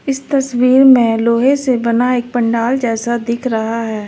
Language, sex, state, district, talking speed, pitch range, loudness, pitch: Hindi, female, Uttar Pradesh, Lalitpur, 175 wpm, 230-255 Hz, -14 LUFS, 240 Hz